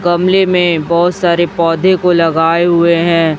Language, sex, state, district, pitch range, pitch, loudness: Hindi, female, Chhattisgarh, Raipur, 165-175 Hz, 170 Hz, -11 LUFS